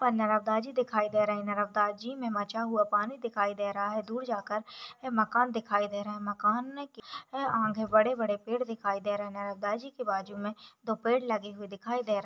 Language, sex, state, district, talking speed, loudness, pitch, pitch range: Hindi, female, Chhattisgarh, Raigarh, 220 wpm, -31 LUFS, 215 Hz, 205-240 Hz